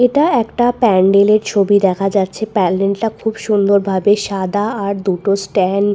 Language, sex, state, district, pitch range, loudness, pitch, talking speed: Bengali, female, West Bengal, Purulia, 195-215 Hz, -15 LUFS, 200 Hz, 140 wpm